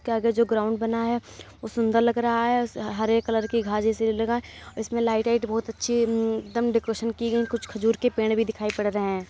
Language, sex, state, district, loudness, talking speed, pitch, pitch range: Hindi, male, Uttar Pradesh, Jalaun, -25 LUFS, 245 wpm, 225 Hz, 220-235 Hz